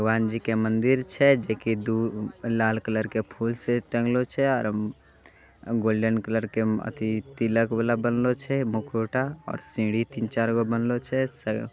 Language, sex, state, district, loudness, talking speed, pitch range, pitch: Angika, male, Bihar, Begusarai, -26 LUFS, 160 wpm, 110-120 Hz, 115 Hz